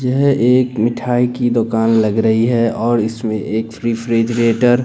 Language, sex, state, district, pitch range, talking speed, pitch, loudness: Hindi, male, Bihar, Katihar, 115-120 Hz, 175 wpm, 115 Hz, -15 LUFS